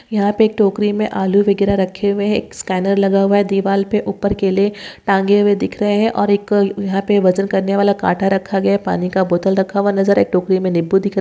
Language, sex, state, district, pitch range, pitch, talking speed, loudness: Hindi, female, Maharashtra, Nagpur, 195-205 Hz, 200 Hz, 235 wpm, -16 LUFS